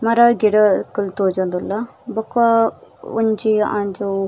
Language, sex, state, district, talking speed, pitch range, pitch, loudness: Tulu, female, Karnataka, Dakshina Kannada, 100 wpm, 200-225 Hz, 215 Hz, -18 LUFS